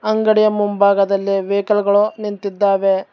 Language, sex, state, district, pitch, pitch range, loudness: Kannada, male, Karnataka, Bangalore, 200 Hz, 195-210 Hz, -16 LUFS